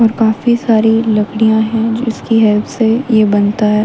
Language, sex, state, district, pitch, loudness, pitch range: Hindi, female, Haryana, Rohtak, 220 Hz, -12 LUFS, 215-225 Hz